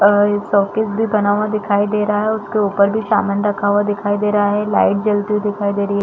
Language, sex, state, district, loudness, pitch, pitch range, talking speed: Hindi, female, Chhattisgarh, Balrampur, -17 LUFS, 205 Hz, 205-210 Hz, 270 wpm